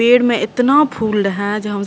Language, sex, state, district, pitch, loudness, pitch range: Maithili, female, Bihar, Purnia, 220 Hz, -15 LUFS, 205-245 Hz